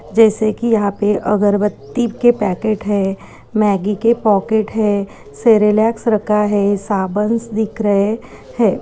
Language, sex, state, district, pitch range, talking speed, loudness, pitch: Hindi, female, Bihar, Sitamarhi, 205-225 Hz, 130 wpm, -16 LUFS, 210 Hz